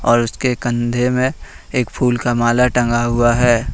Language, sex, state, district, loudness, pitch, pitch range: Hindi, male, Jharkhand, Ranchi, -16 LUFS, 120 Hz, 120-125 Hz